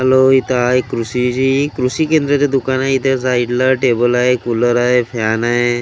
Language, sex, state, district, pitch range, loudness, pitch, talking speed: Marathi, male, Maharashtra, Gondia, 120-130 Hz, -15 LUFS, 125 Hz, 175 wpm